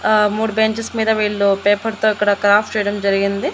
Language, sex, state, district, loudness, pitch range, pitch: Telugu, female, Andhra Pradesh, Annamaya, -17 LUFS, 205-220 Hz, 210 Hz